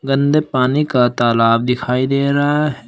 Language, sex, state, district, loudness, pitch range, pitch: Hindi, male, Uttar Pradesh, Shamli, -15 LUFS, 125-145 Hz, 130 Hz